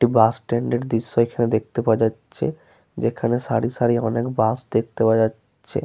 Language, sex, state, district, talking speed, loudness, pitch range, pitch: Bengali, male, West Bengal, Paschim Medinipur, 185 wpm, -21 LUFS, 110-120 Hz, 115 Hz